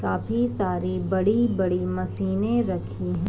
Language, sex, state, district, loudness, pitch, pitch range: Hindi, female, Uttar Pradesh, Varanasi, -25 LUFS, 95 Hz, 90-120 Hz